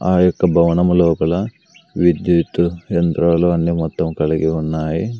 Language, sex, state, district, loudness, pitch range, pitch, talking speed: Telugu, male, Andhra Pradesh, Sri Satya Sai, -16 LUFS, 80-90 Hz, 85 Hz, 115 wpm